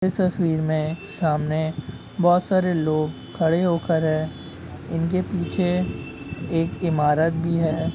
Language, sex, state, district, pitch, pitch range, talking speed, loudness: Hindi, male, Jharkhand, Jamtara, 165 Hz, 155-180 Hz, 130 wpm, -23 LUFS